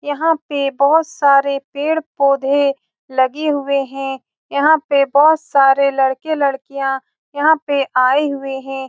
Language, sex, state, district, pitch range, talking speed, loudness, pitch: Hindi, female, Bihar, Saran, 270-295 Hz, 130 wpm, -16 LUFS, 280 Hz